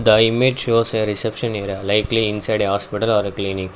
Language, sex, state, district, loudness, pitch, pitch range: English, male, Karnataka, Bangalore, -19 LUFS, 105 Hz, 100-115 Hz